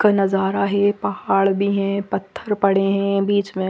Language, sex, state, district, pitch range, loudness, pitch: Hindi, female, Punjab, Fazilka, 195-200 Hz, -19 LUFS, 195 Hz